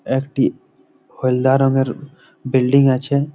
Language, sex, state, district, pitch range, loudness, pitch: Bengali, male, West Bengal, Malda, 130-140 Hz, -17 LUFS, 135 Hz